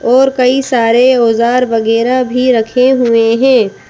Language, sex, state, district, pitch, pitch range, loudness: Hindi, female, Madhya Pradesh, Bhopal, 245 Hz, 230-255 Hz, -10 LUFS